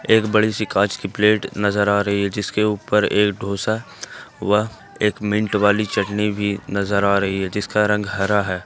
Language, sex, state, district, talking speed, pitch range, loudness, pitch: Hindi, male, Jharkhand, Ranchi, 195 wpm, 100-105 Hz, -20 LUFS, 105 Hz